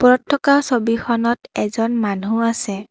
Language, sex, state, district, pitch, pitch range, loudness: Assamese, female, Assam, Kamrup Metropolitan, 230 Hz, 225-250 Hz, -18 LUFS